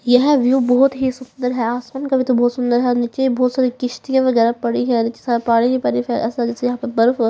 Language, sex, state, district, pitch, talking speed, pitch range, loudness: Hindi, female, Maharashtra, Gondia, 245 Hz, 270 wpm, 235-260 Hz, -17 LUFS